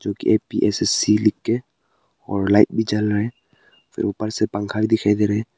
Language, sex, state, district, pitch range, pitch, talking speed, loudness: Hindi, male, Arunachal Pradesh, Papum Pare, 105-110 Hz, 105 Hz, 205 wpm, -20 LUFS